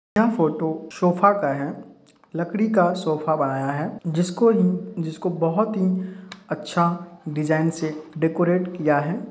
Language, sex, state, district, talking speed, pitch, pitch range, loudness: Hindi, male, Uttar Pradesh, Hamirpur, 120 wpm, 170 Hz, 155-190 Hz, -22 LUFS